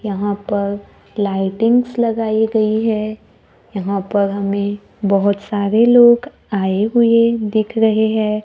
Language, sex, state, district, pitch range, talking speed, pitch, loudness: Hindi, female, Maharashtra, Gondia, 200-225 Hz, 120 wpm, 215 Hz, -16 LUFS